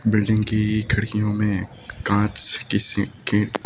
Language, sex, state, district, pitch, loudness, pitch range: Hindi, male, Uttar Pradesh, Lucknow, 105 Hz, -17 LUFS, 105-110 Hz